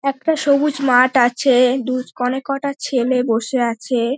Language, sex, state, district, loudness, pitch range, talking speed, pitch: Bengali, female, West Bengal, Dakshin Dinajpur, -17 LUFS, 245-275 Hz, 145 wpm, 255 Hz